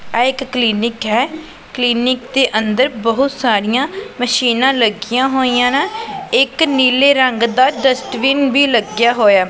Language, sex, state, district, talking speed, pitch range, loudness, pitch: Punjabi, female, Punjab, Pathankot, 130 wpm, 235-270 Hz, -14 LUFS, 255 Hz